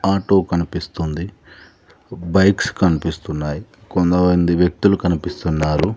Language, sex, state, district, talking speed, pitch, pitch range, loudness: Telugu, male, Telangana, Mahabubabad, 70 wpm, 90 Hz, 80-95 Hz, -18 LUFS